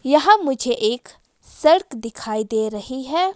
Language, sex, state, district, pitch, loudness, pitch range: Hindi, female, Himachal Pradesh, Shimla, 260 Hz, -19 LUFS, 220-305 Hz